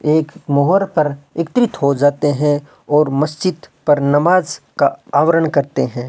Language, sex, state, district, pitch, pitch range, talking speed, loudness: Hindi, female, Rajasthan, Bikaner, 150 Hz, 145-165 Hz, 150 wpm, -16 LUFS